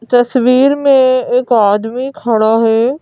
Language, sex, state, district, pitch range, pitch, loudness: Hindi, female, Madhya Pradesh, Bhopal, 225-260 Hz, 250 Hz, -11 LUFS